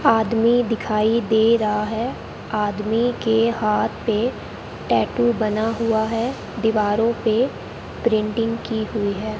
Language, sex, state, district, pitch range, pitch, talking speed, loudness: Hindi, female, Rajasthan, Bikaner, 215-230 Hz, 225 Hz, 120 wpm, -21 LUFS